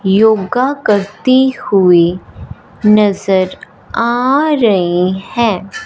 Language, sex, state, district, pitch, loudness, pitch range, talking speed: Hindi, male, Punjab, Fazilka, 210 Hz, -12 LUFS, 190-250 Hz, 70 wpm